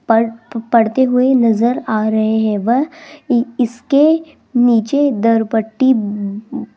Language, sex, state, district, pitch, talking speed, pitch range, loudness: Hindi, female, Rajasthan, Jaipur, 235 Hz, 105 wpm, 220-260 Hz, -15 LUFS